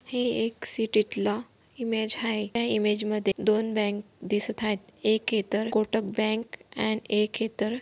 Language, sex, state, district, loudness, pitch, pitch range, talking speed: Marathi, female, Maharashtra, Dhule, -28 LUFS, 215 Hz, 210-225 Hz, 160 wpm